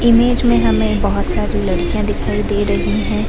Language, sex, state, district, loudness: Hindi, female, Bihar, Gaya, -16 LUFS